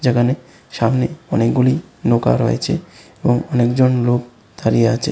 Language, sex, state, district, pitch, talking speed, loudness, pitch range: Bengali, male, Tripura, West Tripura, 120 Hz, 115 wpm, -17 LUFS, 115-125 Hz